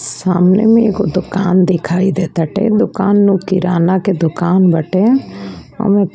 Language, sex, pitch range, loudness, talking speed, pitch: Bhojpuri, female, 175-200 Hz, -13 LUFS, 125 wpm, 185 Hz